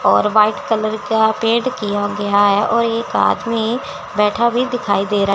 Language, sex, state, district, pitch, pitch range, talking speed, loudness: Hindi, female, Chandigarh, Chandigarh, 215 Hz, 205-230 Hz, 180 wpm, -16 LUFS